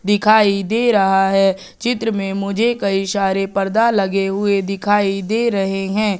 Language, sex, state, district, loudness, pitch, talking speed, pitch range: Hindi, female, Madhya Pradesh, Katni, -17 LUFS, 200 Hz, 155 wpm, 195-215 Hz